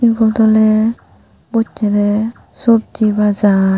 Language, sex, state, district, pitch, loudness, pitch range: Chakma, female, Tripura, Unakoti, 220 Hz, -14 LUFS, 210-225 Hz